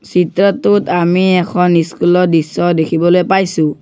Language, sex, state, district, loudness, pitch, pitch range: Assamese, male, Assam, Sonitpur, -12 LUFS, 180 Hz, 165-185 Hz